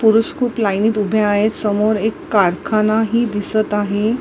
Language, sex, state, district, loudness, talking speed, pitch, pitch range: Marathi, female, Maharashtra, Mumbai Suburban, -17 LUFS, 155 wpm, 215 Hz, 205-220 Hz